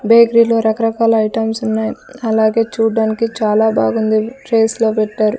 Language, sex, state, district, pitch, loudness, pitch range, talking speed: Telugu, female, Andhra Pradesh, Sri Satya Sai, 225 Hz, -15 LUFS, 220-230 Hz, 135 wpm